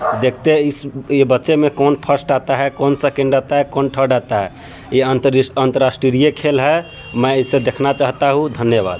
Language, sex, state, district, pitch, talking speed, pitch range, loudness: Hindi, male, Bihar, Sitamarhi, 135 Hz, 185 wpm, 130-145 Hz, -15 LUFS